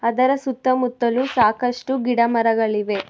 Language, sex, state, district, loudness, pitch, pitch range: Kannada, female, Karnataka, Bangalore, -20 LUFS, 245 Hz, 230-255 Hz